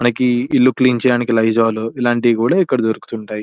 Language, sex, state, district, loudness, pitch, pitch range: Telugu, male, Telangana, Nalgonda, -16 LUFS, 120 Hz, 115-125 Hz